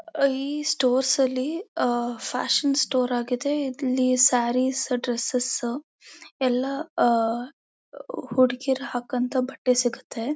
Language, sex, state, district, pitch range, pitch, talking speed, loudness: Kannada, female, Karnataka, Mysore, 245-275 Hz, 255 Hz, 105 wpm, -24 LUFS